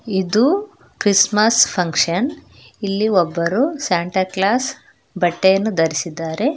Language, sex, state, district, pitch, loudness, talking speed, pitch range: Kannada, female, Karnataka, Bangalore, 190 Hz, -17 LUFS, 80 wpm, 175-230 Hz